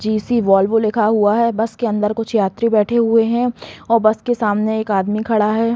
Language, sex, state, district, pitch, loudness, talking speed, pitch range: Hindi, female, Chhattisgarh, Balrampur, 220 Hz, -16 LUFS, 220 wpm, 215-230 Hz